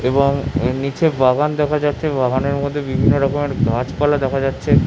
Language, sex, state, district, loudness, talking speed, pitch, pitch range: Bengali, male, West Bengal, Jhargram, -18 LUFS, 185 wpm, 140 Hz, 130-145 Hz